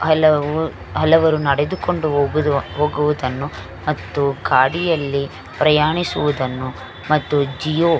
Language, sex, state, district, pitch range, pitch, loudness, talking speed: Kannada, female, Karnataka, Belgaum, 140-155 Hz, 150 Hz, -18 LUFS, 80 wpm